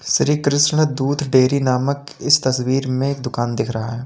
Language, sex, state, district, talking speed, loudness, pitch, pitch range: Hindi, male, Uttar Pradesh, Lalitpur, 175 wpm, -18 LUFS, 135 Hz, 125-140 Hz